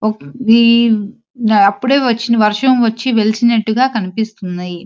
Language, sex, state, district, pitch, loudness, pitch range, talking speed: Telugu, female, Andhra Pradesh, Srikakulam, 225 Hz, -13 LUFS, 210-235 Hz, 75 wpm